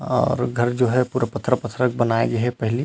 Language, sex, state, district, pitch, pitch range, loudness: Chhattisgarhi, male, Chhattisgarh, Rajnandgaon, 120 Hz, 120-125 Hz, -21 LUFS